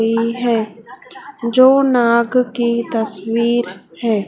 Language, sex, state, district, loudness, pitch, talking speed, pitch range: Hindi, female, Madhya Pradesh, Dhar, -16 LUFS, 235 Hz, 100 wpm, 225-245 Hz